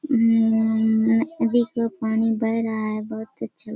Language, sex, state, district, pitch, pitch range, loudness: Hindi, female, Bihar, Kishanganj, 225 Hz, 220-230 Hz, -21 LUFS